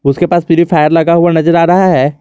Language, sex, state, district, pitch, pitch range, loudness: Hindi, male, Jharkhand, Garhwa, 170 Hz, 155-175 Hz, -9 LUFS